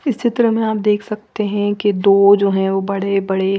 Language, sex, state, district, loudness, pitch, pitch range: Hindi, female, Punjab, Fazilka, -16 LUFS, 205 Hz, 195-215 Hz